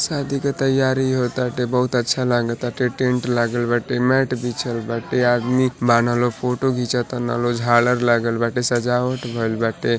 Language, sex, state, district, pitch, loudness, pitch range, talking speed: Bhojpuri, male, Uttar Pradesh, Deoria, 125 Hz, -20 LUFS, 120-125 Hz, 170 wpm